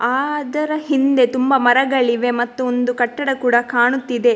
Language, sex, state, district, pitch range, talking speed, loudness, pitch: Kannada, female, Karnataka, Dakshina Kannada, 245-270 Hz, 135 wpm, -17 LUFS, 255 Hz